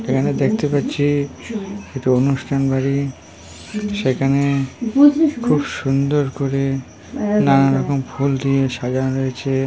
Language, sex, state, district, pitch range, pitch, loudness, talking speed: Bengali, male, West Bengal, Paschim Medinipur, 135-145 Hz, 135 Hz, -18 LUFS, 100 wpm